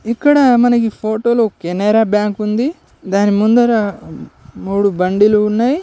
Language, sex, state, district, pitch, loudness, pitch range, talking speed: Telugu, male, Telangana, Nalgonda, 215 Hz, -14 LUFS, 205-240 Hz, 115 wpm